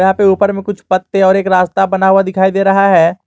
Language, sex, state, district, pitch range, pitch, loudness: Hindi, male, Jharkhand, Garhwa, 190-195 Hz, 190 Hz, -12 LUFS